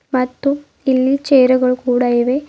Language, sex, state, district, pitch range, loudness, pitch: Kannada, female, Karnataka, Bidar, 255-275 Hz, -15 LUFS, 255 Hz